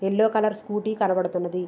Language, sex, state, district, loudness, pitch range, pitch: Telugu, female, Andhra Pradesh, Visakhapatnam, -24 LUFS, 180-215 Hz, 205 Hz